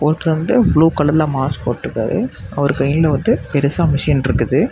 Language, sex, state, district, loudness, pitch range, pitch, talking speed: Tamil, male, Tamil Nadu, Namakkal, -16 LUFS, 135-155 Hz, 145 Hz, 155 wpm